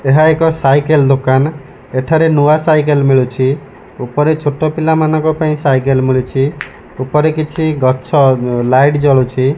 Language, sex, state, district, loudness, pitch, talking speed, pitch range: Odia, male, Odisha, Malkangiri, -12 LUFS, 140 Hz, 120 wpm, 130-155 Hz